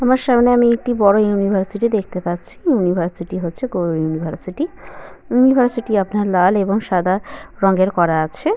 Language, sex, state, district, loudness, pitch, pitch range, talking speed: Bengali, female, West Bengal, Malda, -17 LUFS, 200 Hz, 180-245 Hz, 145 wpm